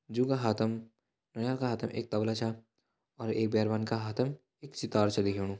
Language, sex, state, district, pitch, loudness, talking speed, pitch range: Hindi, male, Uttarakhand, Tehri Garhwal, 115 Hz, -32 LUFS, 195 wpm, 110-125 Hz